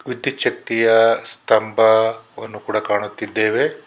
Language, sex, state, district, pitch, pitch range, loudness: Kannada, male, Karnataka, Bangalore, 110 Hz, 110-115 Hz, -18 LUFS